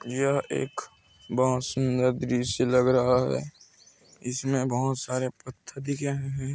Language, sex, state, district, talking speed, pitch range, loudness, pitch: Hindi, male, Chhattisgarh, Kabirdham, 135 wpm, 125-135 Hz, -27 LUFS, 130 Hz